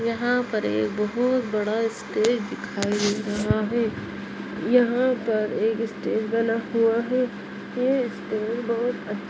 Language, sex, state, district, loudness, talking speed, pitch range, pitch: Hindi, female, Bihar, Begusarai, -24 LUFS, 140 wpm, 215-240 Hz, 230 Hz